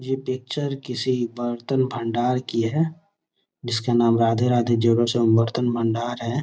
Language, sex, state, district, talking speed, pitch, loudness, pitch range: Hindi, male, Bihar, Gopalganj, 120 wpm, 120 Hz, -22 LUFS, 115-130 Hz